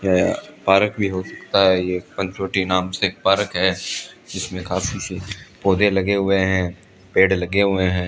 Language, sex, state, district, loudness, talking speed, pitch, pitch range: Hindi, male, Rajasthan, Bikaner, -20 LUFS, 155 wpm, 95 Hz, 90-100 Hz